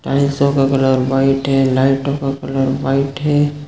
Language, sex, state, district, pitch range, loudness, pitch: Hindi, male, Chhattisgarh, Sukma, 135-140 Hz, -16 LUFS, 135 Hz